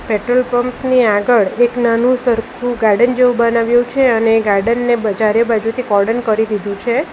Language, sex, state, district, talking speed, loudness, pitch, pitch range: Gujarati, female, Gujarat, Valsad, 170 wpm, -14 LUFS, 235 Hz, 220-245 Hz